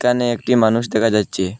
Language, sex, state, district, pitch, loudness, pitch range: Bengali, male, Assam, Hailakandi, 115 Hz, -17 LUFS, 105-120 Hz